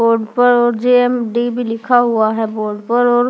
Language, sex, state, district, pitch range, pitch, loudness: Hindi, female, Delhi, New Delhi, 225-245 Hz, 240 Hz, -15 LUFS